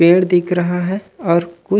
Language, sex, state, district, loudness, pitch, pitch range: Chhattisgarhi, male, Chhattisgarh, Raigarh, -17 LUFS, 180 Hz, 170-185 Hz